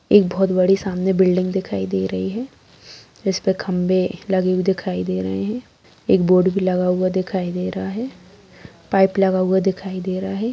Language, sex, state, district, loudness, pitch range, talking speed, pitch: Hindi, female, Bihar, Darbhanga, -20 LUFS, 185-195 Hz, 195 wpm, 185 Hz